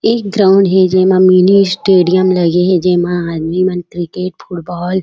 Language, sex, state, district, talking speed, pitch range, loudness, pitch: Chhattisgarhi, female, Chhattisgarh, Raigarh, 165 wpm, 175-190 Hz, -12 LUFS, 185 Hz